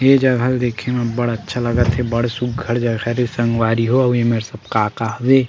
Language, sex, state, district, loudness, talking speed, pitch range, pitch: Chhattisgarhi, male, Chhattisgarh, Sukma, -18 LUFS, 230 wpm, 115-125 Hz, 120 Hz